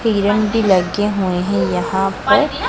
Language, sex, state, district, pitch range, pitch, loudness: Hindi, female, Punjab, Pathankot, 180-210 Hz, 195 Hz, -16 LUFS